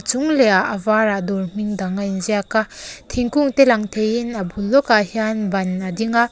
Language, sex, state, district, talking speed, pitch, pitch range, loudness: Mizo, female, Mizoram, Aizawl, 225 wpm, 215 Hz, 200-240 Hz, -19 LUFS